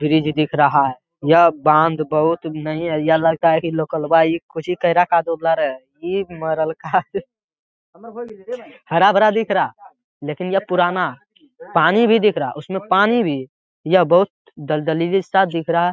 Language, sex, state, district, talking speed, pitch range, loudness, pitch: Hindi, male, Bihar, Jamui, 145 wpm, 155-195 Hz, -18 LUFS, 170 Hz